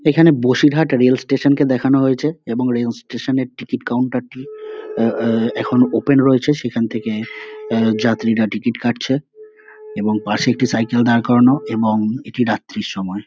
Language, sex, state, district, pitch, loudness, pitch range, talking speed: Bengali, male, West Bengal, North 24 Parganas, 125 Hz, -17 LUFS, 115-135 Hz, 165 wpm